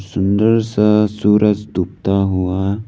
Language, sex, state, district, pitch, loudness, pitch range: Hindi, male, Arunachal Pradesh, Lower Dibang Valley, 100 Hz, -16 LUFS, 95-105 Hz